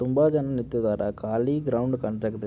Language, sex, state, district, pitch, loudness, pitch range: Kannada, male, Karnataka, Belgaum, 120 Hz, -26 LUFS, 110-130 Hz